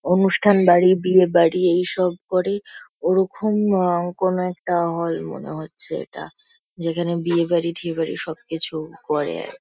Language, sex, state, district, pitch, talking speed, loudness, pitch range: Bengali, female, West Bengal, Kolkata, 175 Hz, 130 wpm, -20 LUFS, 170-185 Hz